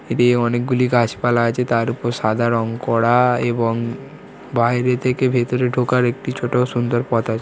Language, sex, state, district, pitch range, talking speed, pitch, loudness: Bengali, female, West Bengal, Jhargram, 115-125 Hz, 155 wpm, 120 Hz, -18 LUFS